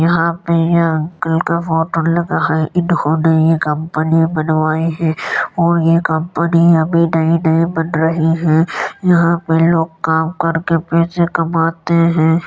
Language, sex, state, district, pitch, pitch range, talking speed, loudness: Hindi, male, Uttar Pradesh, Jyotiba Phule Nagar, 165 Hz, 160-170 Hz, 155 wpm, -14 LUFS